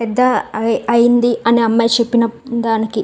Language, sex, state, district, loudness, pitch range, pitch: Telugu, female, Andhra Pradesh, Visakhapatnam, -15 LUFS, 225-235 Hz, 235 Hz